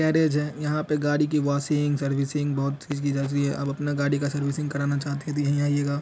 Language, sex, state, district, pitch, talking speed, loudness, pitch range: Hindi, male, Bihar, Supaul, 145 Hz, 230 wpm, -25 LUFS, 140-150 Hz